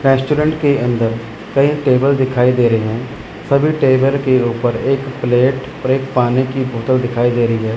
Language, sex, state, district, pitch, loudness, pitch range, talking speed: Hindi, male, Chandigarh, Chandigarh, 130 Hz, -15 LUFS, 120-135 Hz, 185 wpm